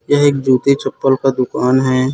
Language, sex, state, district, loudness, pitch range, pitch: Hindi, male, Chhattisgarh, Raipur, -14 LUFS, 130-140 Hz, 130 Hz